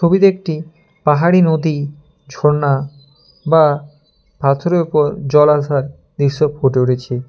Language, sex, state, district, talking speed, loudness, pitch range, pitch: Bengali, male, West Bengal, Alipurduar, 115 wpm, -15 LUFS, 140-160 Hz, 150 Hz